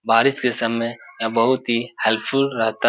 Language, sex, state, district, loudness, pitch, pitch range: Hindi, male, Bihar, Supaul, -20 LUFS, 115 Hz, 115-125 Hz